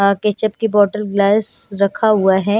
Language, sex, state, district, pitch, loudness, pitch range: Hindi, female, Punjab, Kapurthala, 205 Hz, -16 LUFS, 200-215 Hz